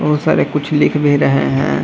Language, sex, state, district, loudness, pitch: Hindi, male, Bihar, Gaya, -14 LUFS, 145 Hz